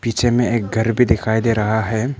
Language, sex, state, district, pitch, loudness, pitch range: Hindi, male, Arunachal Pradesh, Papum Pare, 115 Hz, -18 LUFS, 110-120 Hz